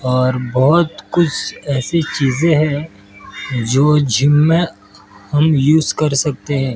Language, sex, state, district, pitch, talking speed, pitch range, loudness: Hindi, male, Maharashtra, Mumbai Suburban, 145 Hz, 125 wpm, 130-155 Hz, -15 LUFS